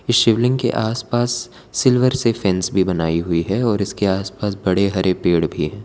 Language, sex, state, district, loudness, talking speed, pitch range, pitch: Hindi, male, Gujarat, Valsad, -18 LUFS, 205 wpm, 95-120 Hz, 100 Hz